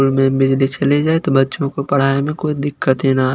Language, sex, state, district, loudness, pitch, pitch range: Hindi, male, Chandigarh, Chandigarh, -16 LUFS, 135 Hz, 135-145 Hz